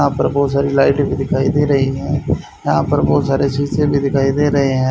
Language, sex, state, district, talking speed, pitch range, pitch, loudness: Hindi, male, Haryana, Charkhi Dadri, 245 wpm, 135-140 Hz, 140 Hz, -16 LUFS